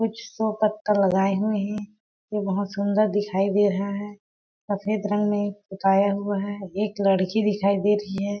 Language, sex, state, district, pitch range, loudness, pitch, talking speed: Hindi, female, Chhattisgarh, Balrampur, 200-210 Hz, -24 LUFS, 205 Hz, 180 wpm